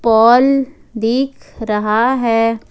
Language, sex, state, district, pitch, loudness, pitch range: Hindi, female, Jharkhand, Ranchi, 230 Hz, -14 LUFS, 225-260 Hz